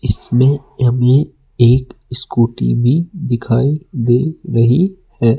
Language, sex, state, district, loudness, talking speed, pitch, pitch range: Hindi, male, Rajasthan, Jaipur, -15 LUFS, 100 wpm, 125 Hz, 120-145 Hz